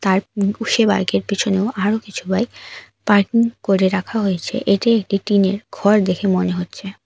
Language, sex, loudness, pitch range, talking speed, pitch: Bengali, female, -18 LUFS, 190-215 Hz, 145 wpm, 200 Hz